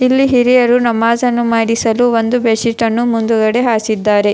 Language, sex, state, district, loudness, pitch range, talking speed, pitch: Kannada, female, Karnataka, Dharwad, -13 LUFS, 225-245 Hz, 140 wpm, 230 Hz